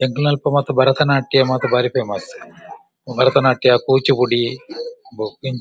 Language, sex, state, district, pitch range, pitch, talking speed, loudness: Tulu, male, Karnataka, Dakshina Kannada, 125-140 Hz, 130 Hz, 105 wpm, -17 LUFS